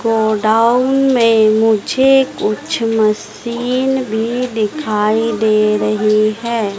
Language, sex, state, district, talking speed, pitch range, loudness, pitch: Hindi, female, Madhya Pradesh, Dhar, 90 wpm, 215-245 Hz, -14 LUFS, 225 Hz